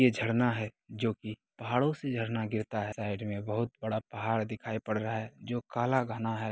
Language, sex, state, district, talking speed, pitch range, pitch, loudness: Hindi, male, Bihar, Begusarai, 210 wpm, 110-120 Hz, 110 Hz, -33 LUFS